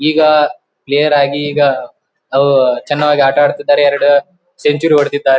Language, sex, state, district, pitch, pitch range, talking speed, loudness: Kannada, male, Karnataka, Bijapur, 145 Hz, 140-150 Hz, 135 wpm, -12 LUFS